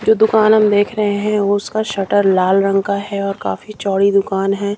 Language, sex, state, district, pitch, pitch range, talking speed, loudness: Hindi, female, Bihar, Katihar, 200 Hz, 195-210 Hz, 215 wpm, -15 LUFS